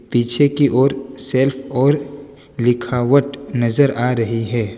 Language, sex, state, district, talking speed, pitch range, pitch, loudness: Hindi, male, Gujarat, Valsad, 125 wpm, 120-140 Hz, 135 Hz, -17 LUFS